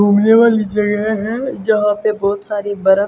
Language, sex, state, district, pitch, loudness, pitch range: Hindi, female, Haryana, Jhajjar, 210 Hz, -15 LUFS, 205-220 Hz